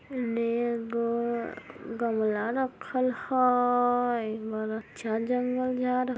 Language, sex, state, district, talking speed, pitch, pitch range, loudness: Maithili, female, Bihar, Samastipur, 80 wpm, 235 Hz, 230-250 Hz, -29 LUFS